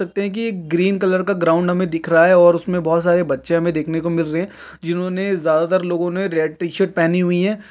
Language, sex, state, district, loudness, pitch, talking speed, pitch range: Hindi, male, Uttarakhand, Tehri Garhwal, -18 LUFS, 175 Hz, 255 wpm, 165-185 Hz